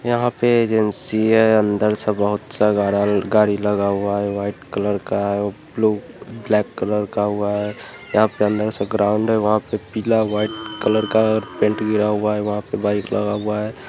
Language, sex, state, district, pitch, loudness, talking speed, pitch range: Hindi, male, Bihar, Vaishali, 105 Hz, -19 LUFS, 185 wpm, 105-110 Hz